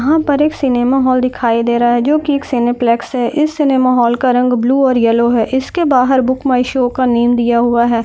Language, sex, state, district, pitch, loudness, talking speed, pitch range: Hindi, female, Bihar, Saran, 250 Hz, -13 LUFS, 240 wpm, 240-265 Hz